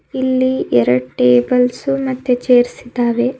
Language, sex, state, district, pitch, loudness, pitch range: Kannada, female, Karnataka, Bidar, 245 Hz, -15 LUFS, 210-255 Hz